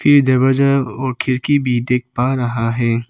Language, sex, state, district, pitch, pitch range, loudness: Hindi, male, Arunachal Pradesh, Papum Pare, 130 Hz, 120-135 Hz, -16 LUFS